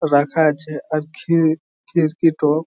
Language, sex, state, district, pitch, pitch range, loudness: Bengali, male, West Bengal, Jhargram, 155 Hz, 150-160 Hz, -19 LUFS